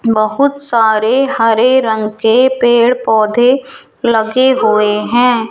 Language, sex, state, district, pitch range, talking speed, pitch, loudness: Hindi, female, Rajasthan, Jaipur, 220-255 Hz, 110 wpm, 235 Hz, -12 LUFS